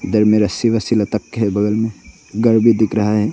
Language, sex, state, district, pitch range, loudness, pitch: Hindi, male, Arunachal Pradesh, Longding, 105-115 Hz, -16 LUFS, 110 Hz